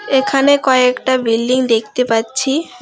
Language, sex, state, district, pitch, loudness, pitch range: Bengali, female, West Bengal, Alipurduar, 255 Hz, -14 LUFS, 235-270 Hz